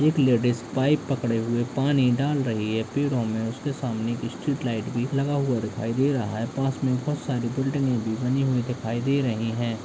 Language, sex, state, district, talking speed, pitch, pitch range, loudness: Hindi, male, Uttarakhand, Uttarkashi, 215 wpm, 125 Hz, 115-135 Hz, -25 LUFS